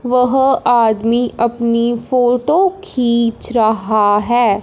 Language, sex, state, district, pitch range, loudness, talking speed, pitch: Hindi, male, Punjab, Fazilka, 230-250 Hz, -14 LUFS, 90 wpm, 240 Hz